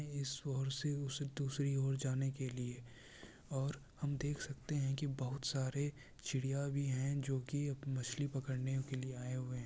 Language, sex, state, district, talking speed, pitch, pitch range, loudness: Urdu, male, Bihar, Kishanganj, 180 wpm, 135 Hz, 130-140 Hz, -41 LUFS